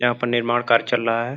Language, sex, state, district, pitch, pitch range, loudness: Hindi, male, Uttar Pradesh, Gorakhpur, 120 Hz, 115-120 Hz, -20 LUFS